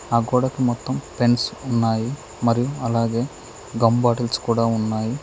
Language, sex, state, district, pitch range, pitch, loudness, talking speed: Telugu, male, Telangana, Mahabubabad, 115-125 Hz, 120 Hz, -21 LUFS, 125 wpm